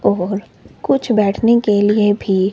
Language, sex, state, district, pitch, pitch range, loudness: Hindi, male, Himachal Pradesh, Shimla, 205 Hz, 195-220 Hz, -15 LUFS